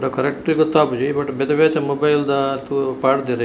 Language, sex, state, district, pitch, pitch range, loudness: Tulu, male, Karnataka, Dakshina Kannada, 140 Hz, 135-150 Hz, -18 LUFS